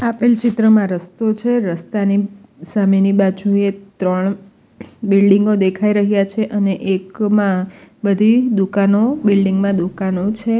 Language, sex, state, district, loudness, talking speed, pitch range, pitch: Gujarati, female, Gujarat, Valsad, -16 LUFS, 120 wpm, 195-215 Hz, 200 Hz